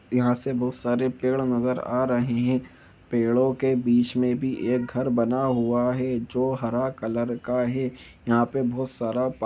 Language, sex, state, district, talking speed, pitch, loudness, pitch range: Hindi, male, Jharkhand, Jamtara, 175 wpm, 125 Hz, -25 LUFS, 120-130 Hz